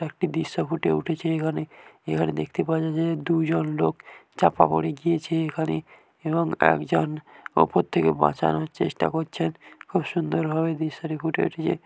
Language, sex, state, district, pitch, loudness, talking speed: Bengali, male, West Bengal, Dakshin Dinajpur, 160 Hz, -25 LUFS, 150 wpm